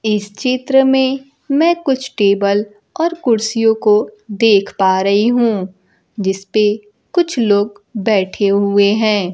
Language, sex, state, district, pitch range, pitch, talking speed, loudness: Hindi, female, Bihar, Kaimur, 200-255 Hz, 215 Hz, 130 wpm, -15 LUFS